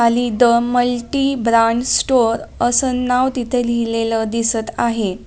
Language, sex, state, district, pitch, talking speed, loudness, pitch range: Marathi, female, Maharashtra, Nagpur, 240 Hz, 115 wpm, -17 LUFS, 230-250 Hz